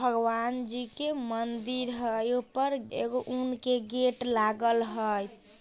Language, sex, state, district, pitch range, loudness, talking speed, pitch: Bajjika, female, Bihar, Vaishali, 230-250 Hz, -30 LUFS, 130 wpm, 245 Hz